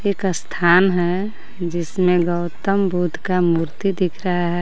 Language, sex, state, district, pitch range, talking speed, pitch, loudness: Hindi, female, Jharkhand, Garhwa, 175-190 Hz, 145 wpm, 180 Hz, -19 LUFS